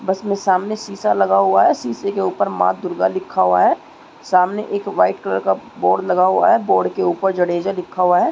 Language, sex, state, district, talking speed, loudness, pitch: Hindi, female, Chhattisgarh, Balrampur, 225 wpm, -17 LUFS, 180 Hz